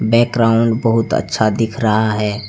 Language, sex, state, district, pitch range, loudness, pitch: Hindi, male, Jharkhand, Deoghar, 110-115 Hz, -15 LUFS, 115 Hz